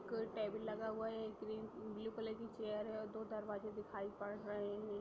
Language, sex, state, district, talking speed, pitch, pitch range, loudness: Hindi, female, Bihar, Sitamarhi, 205 wpm, 215 Hz, 210-220 Hz, -46 LUFS